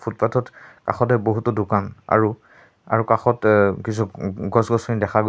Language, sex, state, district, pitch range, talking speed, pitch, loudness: Assamese, male, Assam, Sonitpur, 105-115 Hz, 145 wpm, 110 Hz, -21 LUFS